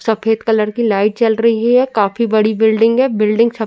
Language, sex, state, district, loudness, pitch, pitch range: Hindi, female, Uttar Pradesh, Jyotiba Phule Nagar, -14 LUFS, 225 Hz, 215-230 Hz